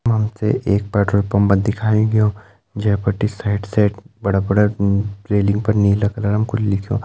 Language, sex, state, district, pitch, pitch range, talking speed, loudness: Hindi, male, Uttarakhand, Uttarkashi, 105 Hz, 100-110 Hz, 170 wpm, -18 LUFS